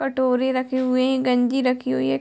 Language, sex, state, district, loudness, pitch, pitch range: Hindi, female, Bihar, Muzaffarpur, -21 LUFS, 255 Hz, 250-260 Hz